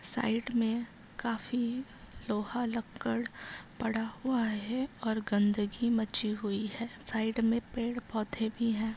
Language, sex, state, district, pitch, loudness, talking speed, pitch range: Hindi, female, Bihar, Begusarai, 230 Hz, -33 LUFS, 120 wpm, 220-235 Hz